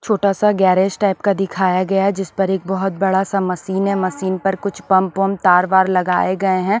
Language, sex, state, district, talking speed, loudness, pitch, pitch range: Hindi, female, Maharashtra, Washim, 230 wpm, -17 LUFS, 195 Hz, 185-195 Hz